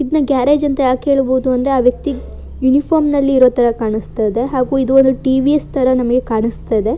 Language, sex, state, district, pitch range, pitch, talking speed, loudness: Kannada, female, Karnataka, Shimoga, 250-275 Hz, 260 Hz, 180 wpm, -14 LUFS